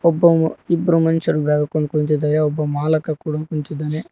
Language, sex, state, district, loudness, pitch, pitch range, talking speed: Kannada, male, Karnataka, Koppal, -18 LUFS, 155 Hz, 150-165 Hz, 145 wpm